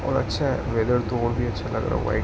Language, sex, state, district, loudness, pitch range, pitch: Hindi, male, Uttar Pradesh, Ghazipur, -24 LUFS, 105-120 Hz, 115 Hz